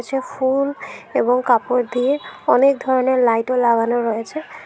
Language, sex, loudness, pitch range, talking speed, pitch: Bengali, female, -18 LUFS, 240-270 Hz, 130 wpm, 255 Hz